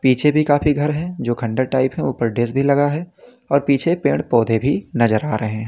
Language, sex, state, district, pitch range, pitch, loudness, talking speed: Hindi, male, Uttar Pradesh, Lalitpur, 115-150 Hz, 135 Hz, -18 LUFS, 230 wpm